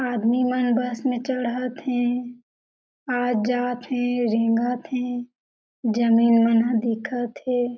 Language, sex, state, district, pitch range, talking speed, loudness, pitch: Chhattisgarhi, female, Chhattisgarh, Jashpur, 235-250 Hz, 125 wpm, -23 LUFS, 245 Hz